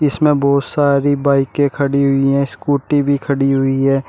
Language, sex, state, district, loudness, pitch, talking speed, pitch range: Hindi, male, Uttar Pradesh, Shamli, -15 LUFS, 140 Hz, 175 wpm, 135-145 Hz